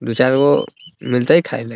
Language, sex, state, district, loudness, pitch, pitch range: Hindi, male, Bihar, Muzaffarpur, -15 LUFS, 130 Hz, 125-155 Hz